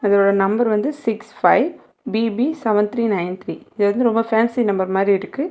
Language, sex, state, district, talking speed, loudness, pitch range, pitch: Tamil, female, Tamil Nadu, Kanyakumari, 185 wpm, -19 LUFS, 200-230 Hz, 220 Hz